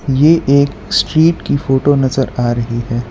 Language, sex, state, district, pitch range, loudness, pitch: Hindi, male, Gujarat, Valsad, 120-145 Hz, -13 LUFS, 135 Hz